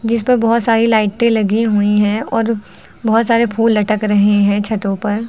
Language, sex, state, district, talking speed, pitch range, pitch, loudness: Hindi, female, Uttar Pradesh, Lucknow, 195 wpm, 205-230 Hz, 220 Hz, -14 LUFS